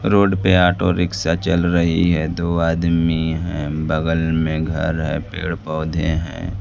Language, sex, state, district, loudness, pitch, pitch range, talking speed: Hindi, male, Bihar, Kaimur, -19 LUFS, 85 Hz, 80-90 Hz, 155 wpm